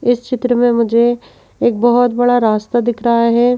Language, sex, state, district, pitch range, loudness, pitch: Hindi, female, Madhya Pradesh, Bhopal, 235-245 Hz, -14 LUFS, 240 Hz